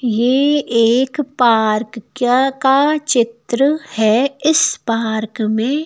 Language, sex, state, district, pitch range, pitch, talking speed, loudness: Hindi, female, Madhya Pradesh, Bhopal, 230-280 Hz, 245 Hz, 115 wpm, -15 LUFS